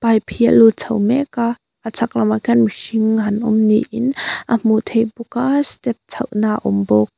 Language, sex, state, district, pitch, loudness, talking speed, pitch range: Mizo, female, Mizoram, Aizawl, 225 Hz, -17 LUFS, 225 wpm, 215-235 Hz